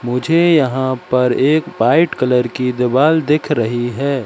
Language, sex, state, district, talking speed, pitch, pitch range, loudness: Hindi, male, Madhya Pradesh, Katni, 155 wpm, 130 Hz, 125-155 Hz, -15 LUFS